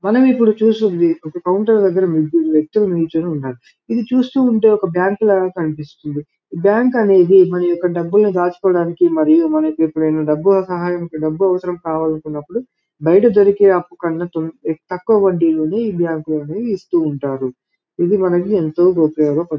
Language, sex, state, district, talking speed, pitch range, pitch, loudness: Telugu, male, Telangana, Karimnagar, 150 wpm, 160-210 Hz, 180 Hz, -15 LUFS